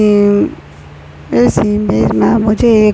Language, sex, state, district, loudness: Hindi, male, Chhattisgarh, Raigarh, -12 LUFS